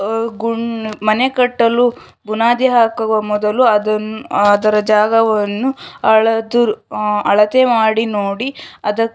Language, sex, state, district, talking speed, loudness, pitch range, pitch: Kannada, female, Karnataka, Shimoga, 105 wpm, -15 LUFS, 210-235 Hz, 220 Hz